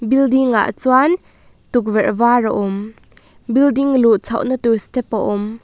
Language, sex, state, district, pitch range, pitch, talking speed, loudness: Mizo, female, Mizoram, Aizawl, 220-260 Hz, 240 Hz, 160 wpm, -16 LUFS